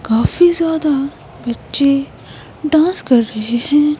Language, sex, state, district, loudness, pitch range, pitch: Hindi, female, Himachal Pradesh, Shimla, -15 LUFS, 240-315 Hz, 285 Hz